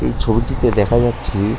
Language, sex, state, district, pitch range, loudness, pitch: Bengali, male, West Bengal, North 24 Parganas, 100-120 Hz, -17 LUFS, 110 Hz